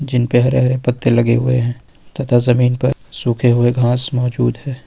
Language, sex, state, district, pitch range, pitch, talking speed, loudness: Hindi, male, Jharkhand, Ranchi, 120-130 Hz, 125 Hz, 200 wpm, -15 LUFS